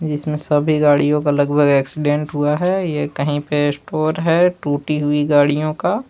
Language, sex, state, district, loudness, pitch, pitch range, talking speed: Hindi, male, Jharkhand, Palamu, -17 LUFS, 150 Hz, 145-155 Hz, 165 wpm